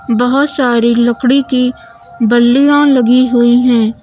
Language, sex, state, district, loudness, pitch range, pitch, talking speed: Hindi, female, Uttar Pradesh, Lucknow, -10 LUFS, 235-260 Hz, 245 Hz, 120 wpm